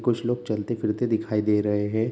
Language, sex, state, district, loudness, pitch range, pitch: Hindi, male, Bihar, Darbhanga, -25 LUFS, 105-120 Hz, 110 Hz